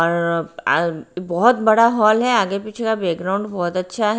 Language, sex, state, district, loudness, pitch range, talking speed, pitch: Hindi, female, Bihar, Patna, -18 LUFS, 175-220 Hz, 185 wpm, 195 Hz